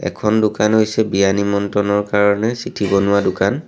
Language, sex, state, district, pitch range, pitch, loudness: Assamese, male, Assam, Sonitpur, 100-110 Hz, 100 Hz, -16 LUFS